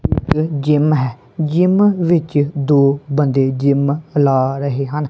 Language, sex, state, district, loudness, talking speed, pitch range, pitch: Punjabi, female, Punjab, Kapurthala, -16 LUFS, 120 wpm, 140-155 Hz, 145 Hz